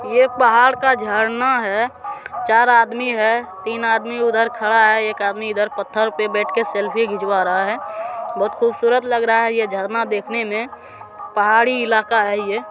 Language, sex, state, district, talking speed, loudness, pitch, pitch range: Hindi, male, Bihar, Supaul, 195 wpm, -18 LUFS, 225 Hz, 210-240 Hz